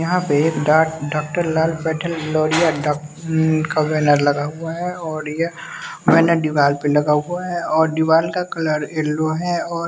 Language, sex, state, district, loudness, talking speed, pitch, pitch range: Hindi, male, Bihar, West Champaran, -19 LUFS, 175 wpm, 160 Hz, 150-165 Hz